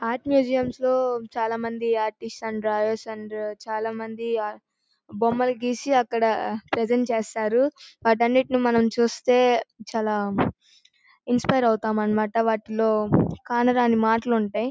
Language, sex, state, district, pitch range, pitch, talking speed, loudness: Telugu, female, Andhra Pradesh, Guntur, 220-245 Hz, 230 Hz, 105 wpm, -24 LUFS